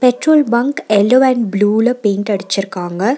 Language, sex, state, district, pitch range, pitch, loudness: Tamil, female, Tamil Nadu, Nilgiris, 200-255 Hz, 220 Hz, -14 LUFS